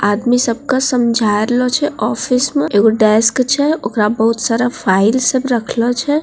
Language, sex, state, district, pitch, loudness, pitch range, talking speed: Maithili, female, Bihar, Bhagalpur, 240 Hz, -14 LUFS, 220-255 Hz, 165 wpm